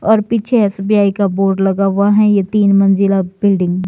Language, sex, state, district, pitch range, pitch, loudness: Hindi, male, Himachal Pradesh, Shimla, 195-210 Hz, 200 Hz, -13 LUFS